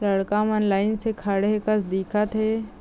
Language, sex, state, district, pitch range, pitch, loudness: Chhattisgarhi, female, Chhattisgarh, Raigarh, 200-215 Hz, 210 Hz, -23 LUFS